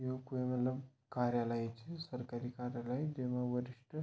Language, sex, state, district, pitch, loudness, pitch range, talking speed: Garhwali, male, Uttarakhand, Tehri Garhwal, 125 Hz, -40 LUFS, 125-130 Hz, 150 wpm